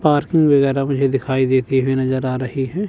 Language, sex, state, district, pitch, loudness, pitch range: Hindi, male, Chandigarh, Chandigarh, 135 Hz, -18 LUFS, 130-145 Hz